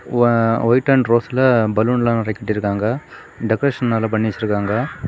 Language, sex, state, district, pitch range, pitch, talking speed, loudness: Tamil, male, Tamil Nadu, Kanyakumari, 110-125 Hz, 115 Hz, 140 wpm, -18 LUFS